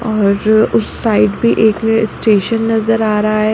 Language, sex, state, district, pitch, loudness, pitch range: Hindi, female, Uttar Pradesh, Muzaffarnagar, 220 Hz, -13 LUFS, 210-225 Hz